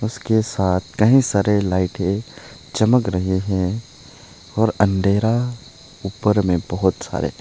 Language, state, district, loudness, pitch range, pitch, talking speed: Hindi, Arunachal Pradesh, Papum Pare, -19 LUFS, 95-110 Hz, 100 Hz, 115 wpm